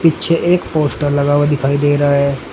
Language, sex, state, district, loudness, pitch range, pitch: Hindi, male, Uttar Pradesh, Saharanpur, -14 LUFS, 140-160 Hz, 145 Hz